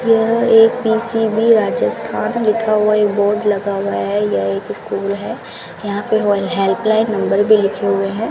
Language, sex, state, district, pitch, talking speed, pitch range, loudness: Hindi, female, Rajasthan, Bikaner, 210 Hz, 175 wpm, 200-225 Hz, -16 LUFS